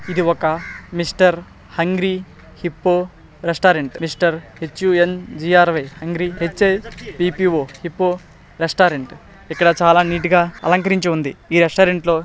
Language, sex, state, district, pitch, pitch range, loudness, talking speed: Telugu, male, Andhra Pradesh, Srikakulam, 175 Hz, 165-180 Hz, -17 LUFS, 105 wpm